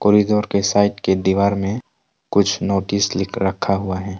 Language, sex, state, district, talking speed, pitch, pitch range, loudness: Hindi, male, Arunachal Pradesh, Longding, 185 wpm, 100 Hz, 95-100 Hz, -19 LUFS